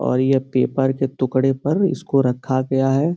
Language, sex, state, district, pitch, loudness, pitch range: Hindi, male, Uttar Pradesh, Gorakhpur, 135 Hz, -19 LUFS, 130-135 Hz